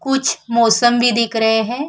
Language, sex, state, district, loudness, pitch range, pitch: Hindi, female, Bihar, Vaishali, -15 LUFS, 230-255 Hz, 235 Hz